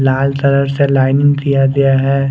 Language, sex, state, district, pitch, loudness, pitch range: Hindi, male, Chandigarh, Chandigarh, 140 Hz, -13 LUFS, 135-140 Hz